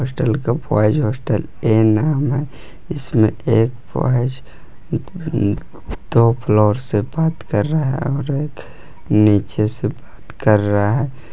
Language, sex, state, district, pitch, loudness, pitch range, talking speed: Hindi, male, Jharkhand, Palamu, 115 Hz, -18 LUFS, 105-140 Hz, 90 wpm